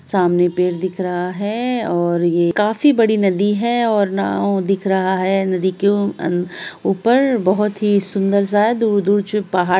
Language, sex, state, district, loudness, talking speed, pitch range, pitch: Hindi, female, Bihar, Araria, -17 LUFS, 155 wpm, 180-210 Hz, 195 Hz